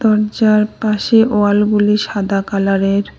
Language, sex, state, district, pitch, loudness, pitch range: Bengali, female, West Bengal, Cooch Behar, 210 Hz, -14 LUFS, 200-215 Hz